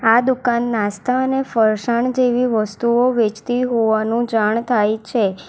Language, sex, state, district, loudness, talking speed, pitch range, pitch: Gujarati, female, Gujarat, Valsad, -18 LUFS, 130 wpm, 220-245 Hz, 235 Hz